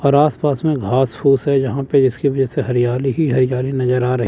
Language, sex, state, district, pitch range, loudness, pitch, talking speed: Hindi, male, Chandigarh, Chandigarh, 125-140 Hz, -17 LUFS, 135 Hz, 240 wpm